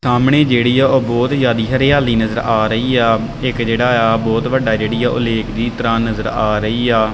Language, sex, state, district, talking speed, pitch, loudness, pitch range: Punjabi, male, Punjab, Kapurthala, 220 wpm, 115 Hz, -15 LUFS, 115-125 Hz